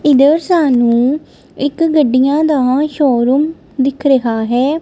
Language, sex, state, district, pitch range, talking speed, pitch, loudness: Punjabi, female, Punjab, Kapurthala, 255-305 Hz, 110 wpm, 280 Hz, -13 LUFS